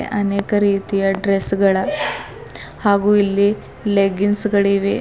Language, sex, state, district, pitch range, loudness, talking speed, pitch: Kannada, female, Karnataka, Bidar, 195-205 Hz, -18 LUFS, 95 wpm, 200 Hz